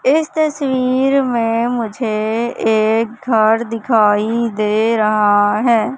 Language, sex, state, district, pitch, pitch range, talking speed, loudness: Hindi, male, Madhya Pradesh, Katni, 230 Hz, 215-250 Hz, 100 wpm, -15 LUFS